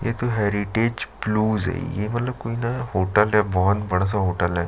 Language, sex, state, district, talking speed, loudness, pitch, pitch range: Hindi, male, Chhattisgarh, Sukma, 180 wpm, -23 LUFS, 105 Hz, 95-115 Hz